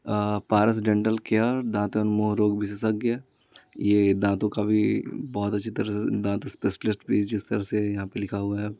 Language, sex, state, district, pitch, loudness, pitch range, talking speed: Hindi, male, Bihar, Gaya, 105 Hz, -25 LUFS, 100-110 Hz, 190 wpm